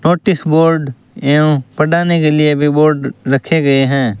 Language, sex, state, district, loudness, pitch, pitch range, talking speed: Hindi, male, Rajasthan, Bikaner, -13 LUFS, 150 Hz, 135-160 Hz, 155 wpm